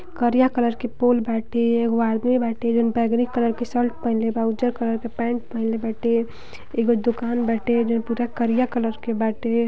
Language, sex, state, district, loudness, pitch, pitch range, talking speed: Bhojpuri, female, Uttar Pradesh, Gorakhpur, -22 LUFS, 235 Hz, 230-240 Hz, 185 wpm